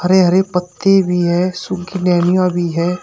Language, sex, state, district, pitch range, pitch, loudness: Hindi, male, Uttar Pradesh, Shamli, 175-185 Hz, 180 Hz, -15 LUFS